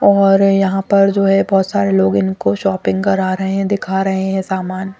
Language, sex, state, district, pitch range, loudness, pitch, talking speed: Hindi, female, Chandigarh, Chandigarh, 185-195 Hz, -15 LUFS, 190 Hz, 205 wpm